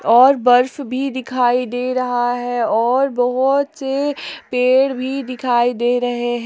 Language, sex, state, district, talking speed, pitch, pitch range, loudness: Hindi, female, Jharkhand, Palamu, 150 wpm, 250 Hz, 245-265 Hz, -17 LUFS